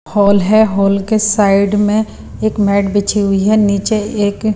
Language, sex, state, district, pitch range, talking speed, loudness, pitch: Hindi, female, Bihar, Patna, 200-215 Hz, 170 wpm, -13 LUFS, 205 Hz